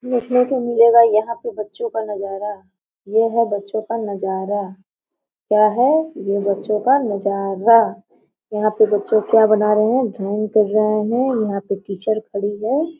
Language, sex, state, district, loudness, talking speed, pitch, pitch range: Hindi, female, Jharkhand, Sahebganj, -18 LUFS, 160 wpm, 215 Hz, 200-230 Hz